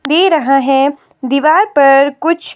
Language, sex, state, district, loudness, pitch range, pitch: Hindi, female, Himachal Pradesh, Shimla, -11 LUFS, 275-330 Hz, 285 Hz